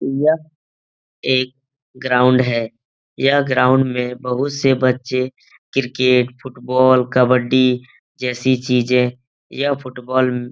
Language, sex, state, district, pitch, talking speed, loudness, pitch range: Hindi, male, Bihar, Jahanabad, 130 Hz, 105 wpm, -17 LUFS, 125-130 Hz